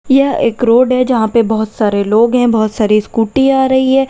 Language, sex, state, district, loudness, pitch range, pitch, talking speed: Hindi, female, Uttar Pradesh, Lalitpur, -12 LUFS, 220-260 Hz, 235 Hz, 235 wpm